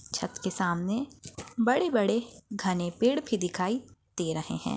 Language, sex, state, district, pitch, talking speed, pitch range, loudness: Hindi, female, Chhattisgarh, Balrampur, 210 Hz, 140 wpm, 180-240 Hz, -29 LUFS